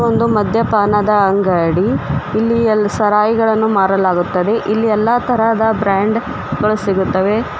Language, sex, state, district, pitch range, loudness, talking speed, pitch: Kannada, female, Karnataka, Koppal, 195-225 Hz, -14 LUFS, 100 wpm, 210 Hz